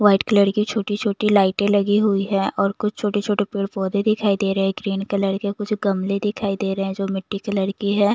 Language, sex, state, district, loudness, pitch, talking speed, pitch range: Hindi, female, Bihar, Patna, -21 LUFS, 200 Hz, 220 wpm, 195-210 Hz